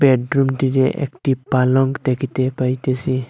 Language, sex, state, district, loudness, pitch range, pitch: Bengali, male, Assam, Hailakandi, -18 LUFS, 130-135 Hz, 130 Hz